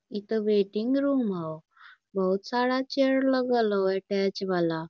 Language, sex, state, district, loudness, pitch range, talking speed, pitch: Magahi, female, Bihar, Lakhisarai, -26 LUFS, 190-255 Hz, 160 wpm, 210 Hz